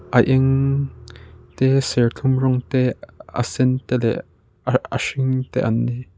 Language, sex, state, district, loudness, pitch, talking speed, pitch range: Mizo, male, Mizoram, Aizawl, -20 LUFS, 130 Hz, 155 wpm, 120-130 Hz